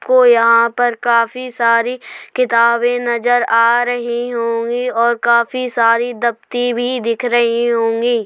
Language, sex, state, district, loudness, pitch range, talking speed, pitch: Hindi, female, Uttar Pradesh, Hamirpur, -15 LUFS, 230-245 Hz, 130 wpm, 240 Hz